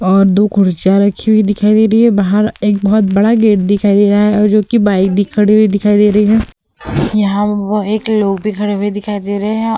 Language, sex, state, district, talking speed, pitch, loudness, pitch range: Hindi, female, Uttar Pradesh, Hamirpur, 240 wpm, 210 Hz, -12 LUFS, 200-215 Hz